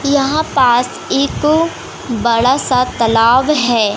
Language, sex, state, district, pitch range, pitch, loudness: Hindi, female, Madhya Pradesh, Umaria, 235-285 Hz, 255 Hz, -13 LUFS